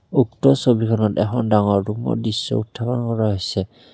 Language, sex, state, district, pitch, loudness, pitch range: Assamese, male, Assam, Kamrup Metropolitan, 110 Hz, -20 LUFS, 105-115 Hz